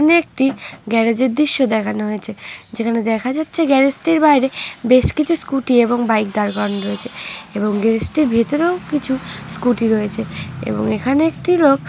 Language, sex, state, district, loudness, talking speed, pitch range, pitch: Bengali, female, West Bengal, North 24 Parganas, -17 LUFS, 155 wpm, 215-280 Hz, 240 Hz